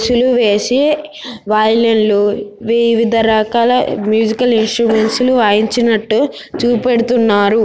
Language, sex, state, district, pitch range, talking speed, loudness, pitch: Telugu, female, Telangana, Nalgonda, 220-240 Hz, 55 wpm, -13 LUFS, 230 Hz